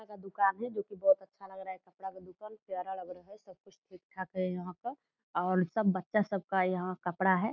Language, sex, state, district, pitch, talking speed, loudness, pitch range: Hindi, female, Bihar, Purnia, 190 Hz, 245 wpm, -33 LUFS, 185-205 Hz